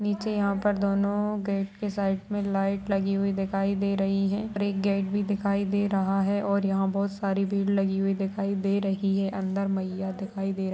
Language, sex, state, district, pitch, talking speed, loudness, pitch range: Kumaoni, female, Uttarakhand, Tehri Garhwal, 195 Hz, 225 wpm, -27 LUFS, 195-200 Hz